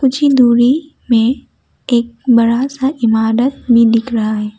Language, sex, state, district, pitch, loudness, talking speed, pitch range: Hindi, female, Assam, Kamrup Metropolitan, 240 Hz, -13 LUFS, 155 wpm, 230-265 Hz